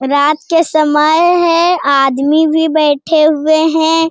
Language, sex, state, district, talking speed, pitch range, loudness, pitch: Hindi, female, Bihar, Jamui, 130 wpm, 295-325 Hz, -11 LUFS, 315 Hz